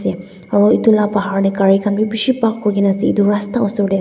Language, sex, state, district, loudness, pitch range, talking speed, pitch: Nagamese, female, Nagaland, Dimapur, -15 LUFS, 195-215 Hz, 270 wpm, 205 Hz